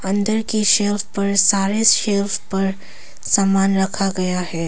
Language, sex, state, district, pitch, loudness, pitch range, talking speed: Hindi, female, Arunachal Pradesh, Papum Pare, 195 Hz, -17 LUFS, 195-205 Hz, 140 wpm